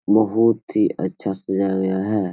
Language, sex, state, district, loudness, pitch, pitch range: Hindi, male, Bihar, Jahanabad, -20 LUFS, 100 Hz, 95-110 Hz